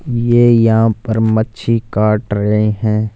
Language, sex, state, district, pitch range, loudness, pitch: Hindi, male, Punjab, Fazilka, 105-115 Hz, -14 LUFS, 110 Hz